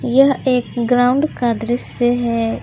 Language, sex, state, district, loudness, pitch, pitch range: Hindi, female, Jharkhand, Palamu, -16 LUFS, 245 Hz, 235-255 Hz